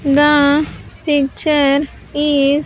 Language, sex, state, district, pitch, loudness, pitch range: English, female, Andhra Pradesh, Sri Satya Sai, 290 Hz, -14 LUFS, 280-295 Hz